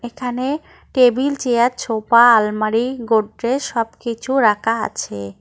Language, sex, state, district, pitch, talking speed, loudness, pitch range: Bengali, female, West Bengal, Cooch Behar, 235 Hz, 100 wpm, -18 LUFS, 225-255 Hz